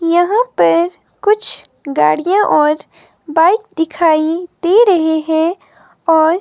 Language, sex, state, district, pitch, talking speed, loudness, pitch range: Hindi, female, Himachal Pradesh, Shimla, 330 Hz, 105 wpm, -14 LUFS, 315-375 Hz